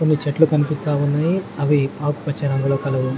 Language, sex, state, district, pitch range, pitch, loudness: Telugu, male, Telangana, Mahabubabad, 140-150 Hz, 145 Hz, -20 LUFS